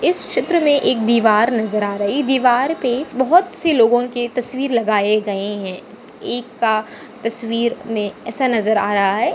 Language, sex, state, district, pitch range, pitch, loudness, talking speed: Hindi, female, Maharashtra, Dhule, 215-255 Hz, 235 Hz, -17 LUFS, 165 wpm